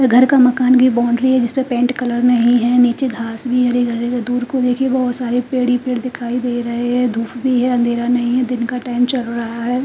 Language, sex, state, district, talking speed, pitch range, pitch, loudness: Hindi, female, Punjab, Fazilka, 250 wpm, 240-255 Hz, 245 Hz, -16 LUFS